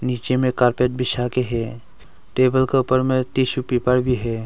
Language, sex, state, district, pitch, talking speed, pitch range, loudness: Hindi, male, Arunachal Pradesh, Longding, 125 Hz, 190 wpm, 125-130 Hz, -20 LUFS